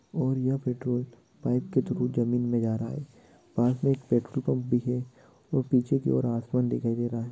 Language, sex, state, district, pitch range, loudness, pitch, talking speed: Hindi, male, Bihar, Jamui, 120-130 Hz, -28 LUFS, 125 Hz, 215 wpm